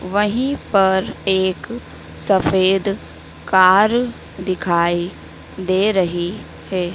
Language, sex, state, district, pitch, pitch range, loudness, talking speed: Hindi, female, Madhya Pradesh, Dhar, 190 Hz, 185-205 Hz, -18 LUFS, 80 wpm